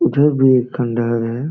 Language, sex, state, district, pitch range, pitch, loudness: Hindi, male, Bihar, Jamui, 120-135 Hz, 125 Hz, -16 LUFS